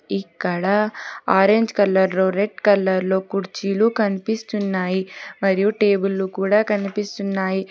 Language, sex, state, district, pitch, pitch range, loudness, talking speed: Telugu, female, Telangana, Hyderabad, 195 Hz, 190-210 Hz, -20 LUFS, 85 wpm